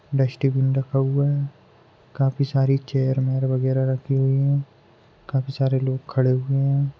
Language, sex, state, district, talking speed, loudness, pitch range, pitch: Hindi, male, Maharashtra, Pune, 155 wpm, -22 LUFS, 130-140 Hz, 135 Hz